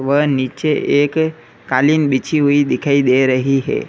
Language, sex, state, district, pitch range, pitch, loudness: Hindi, male, Uttar Pradesh, Lalitpur, 130-150 Hz, 140 Hz, -15 LUFS